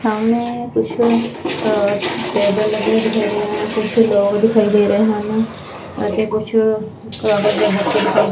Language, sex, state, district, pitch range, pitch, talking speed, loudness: Punjabi, female, Punjab, Fazilka, 210-220 Hz, 215 Hz, 100 wpm, -17 LUFS